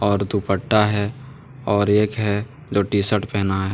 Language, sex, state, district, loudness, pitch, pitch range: Hindi, male, Jharkhand, Deoghar, -20 LUFS, 105 Hz, 100-110 Hz